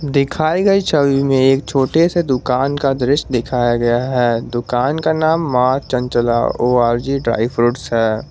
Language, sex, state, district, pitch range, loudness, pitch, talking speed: Hindi, male, Jharkhand, Garhwa, 120-140 Hz, -16 LUFS, 130 Hz, 175 wpm